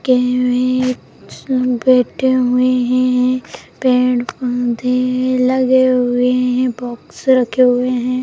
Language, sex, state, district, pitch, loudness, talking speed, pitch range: Hindi, female, Bihar, Saharsa, 250 Hz, -15 LUFS, 110 wpm, 250-255 Hz